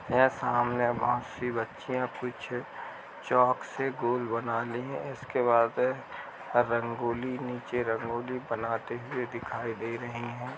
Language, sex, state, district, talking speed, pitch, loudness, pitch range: Hindi, male, Uttar Pradesh, Jalaun, 130 wpm, 120 Hz, -30 LUFS, 115-125 Hz